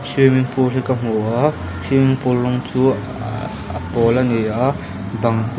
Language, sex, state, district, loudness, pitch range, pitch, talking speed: Mizo, male, Mizoram, Aizawl, -18 LUFS, 110-130 Hz, 125 Hz, 160 wpm